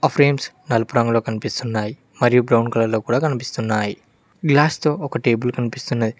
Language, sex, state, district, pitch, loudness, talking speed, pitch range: Telugu, male, Telangana, Mahabubabad, 120 Hz, -20 LUFS, 145 wpm, 115-145 Hz